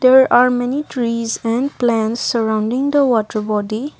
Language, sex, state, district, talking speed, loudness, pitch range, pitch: English, female, Assam, Kamrup Metropolitan, 150 wpm, -17 LUFS, 225-255 Hz, 240 Hz